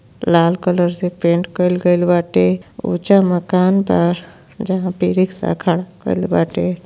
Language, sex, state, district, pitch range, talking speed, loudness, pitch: Bhojpuri, female, Uttar Pradesh, Gorakhpur, 170-185 Hz, 140 wpm, -16 LUFS, 180 Hz